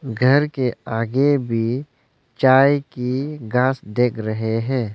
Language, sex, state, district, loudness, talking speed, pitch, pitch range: Hindi, male, Arunachal Pradesh, Longding, -20 LUFS, 120 wpm, 125 Hz, 115-135 Hz